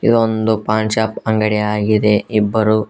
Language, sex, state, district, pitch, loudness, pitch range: Kannada, male, Karnataka, Koppal, 110 Hz, -16 LUFS, 105-110 Hz